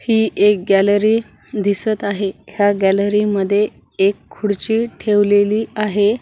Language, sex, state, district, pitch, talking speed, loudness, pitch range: Marathi, female, Maharashtra, Washim, 205 Hz, 115 wpm, -17 LUFS, 200-215 Hz